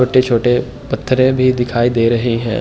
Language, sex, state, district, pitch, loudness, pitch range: Hindi, male, Uttar Pradesh, Hamirpur, 120 Hz, -15 LUFS, 120-130 Hz